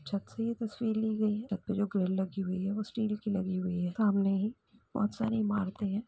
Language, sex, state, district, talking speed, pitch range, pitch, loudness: Hindi, female, Uttar Pradesh, Jalaun, 265 wpm, 195-215 Hz, 205 Hz, -33 LUFS